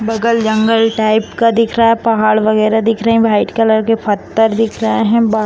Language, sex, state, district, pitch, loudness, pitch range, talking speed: Hindi, female, Bihar, Samastipur, 225 Hz, -13 LUFS, 215-230 Hz, 230 wpm